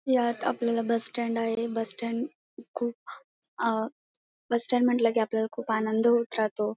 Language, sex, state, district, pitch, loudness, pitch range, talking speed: Marathi, female, Maharashtra, Pune, 230 Hz, -28 LUFS, 225-240 Hz, 160 wpm